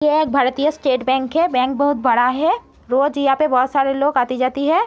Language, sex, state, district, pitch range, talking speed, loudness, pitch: Hindi, female, Uttar Pradesh, Etah, 255-295 Hz, 235 wpm, -17 LUFS, 275 Hz